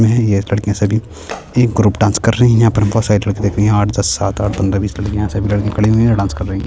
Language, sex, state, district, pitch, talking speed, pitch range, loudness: Hindi, male, Chhattisgarh, Kabirdham, 105 Hz, 290 wpm, 100-110 Hz, -14 LUFS